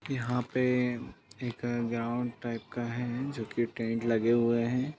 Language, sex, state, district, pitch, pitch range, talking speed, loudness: Hindi, male, Bihar, Purnia, 120 Hz, 115-125 Hz, 155 wpm, -31 LUFS